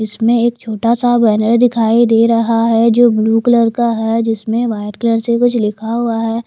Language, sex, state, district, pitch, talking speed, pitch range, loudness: Hindi, female, Himachal Pradesh, Shimla, 230 Hz, 205 wpm, 225-235 Hz, -13 LUFS